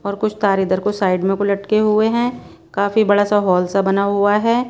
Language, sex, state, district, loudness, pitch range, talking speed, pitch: Hindi, female, Bihar, Patna, -17 LUFS, 195-215 Hz, 245 wpm, 205 Hz